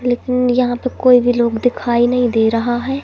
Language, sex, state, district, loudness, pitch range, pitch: Hindi, female, Madhya Pradesh, Katni, -15 LUFS, 240-250 Hz, 245 Hz